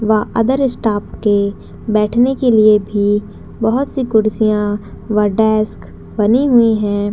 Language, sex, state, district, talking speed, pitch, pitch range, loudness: Hindi, female, Chhattisgarh, Raigarh, 135 wpm, 215 Hz, 210-230 Hz, -15 LUFS